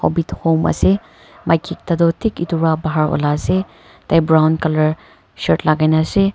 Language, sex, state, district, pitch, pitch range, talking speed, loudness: Nagamese, female, Nagaland, Kohima, 160 Hz, 155-170 Hz, 180 wpm, -17 LUFS